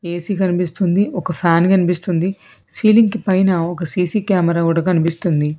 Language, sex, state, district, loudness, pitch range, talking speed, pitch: Telugu, female, Telangana, Hyderabad, -16 LUFS, 170-190 Hz, 130 wpm, 180 Hz